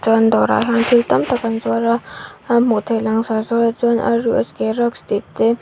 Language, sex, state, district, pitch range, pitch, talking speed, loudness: Mizo, female, Mizoram, Aizawl, 225-235 Hz, 230 Hz, 205 wpm, -17 LUFS